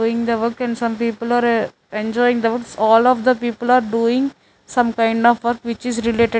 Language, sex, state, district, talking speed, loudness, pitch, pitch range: English, female, Chandigarh, Chandigarh, 215 wpm, -18 LUFS, 235 Hz, 230-240 Hz